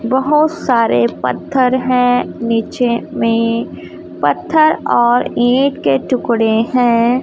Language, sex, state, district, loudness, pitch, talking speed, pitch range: Hindi, female, Chhattisgarh, Raipur, -14 LUFS, 245 Hz, 100 wpm, 230-260 Hz